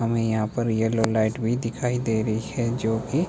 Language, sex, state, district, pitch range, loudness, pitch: Hindi, male, Himachal Pradesh, Shimla, 110-120 Hz, -24 LUFS, 115 Hz